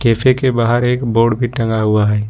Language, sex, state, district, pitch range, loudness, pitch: Hindi, male, Jharkhand, Ranchi, 110-120 Hz, -15 LUFS, 115 Hz